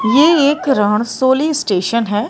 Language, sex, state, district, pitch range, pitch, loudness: Hindi, female, Maharashtra, Mumbai Suburban, 210-290 Hz, 255 Hz, -14 LUFS